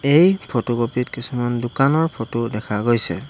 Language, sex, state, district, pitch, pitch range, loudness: Assamese, male, Assam, Hailakandi, 120 Hz, 115-135 Hz, -20 LUFS